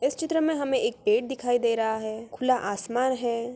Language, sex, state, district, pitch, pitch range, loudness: Hindi, female, Bihar, Araria, 245 Hz, 225-265 Hz, -26 LUFS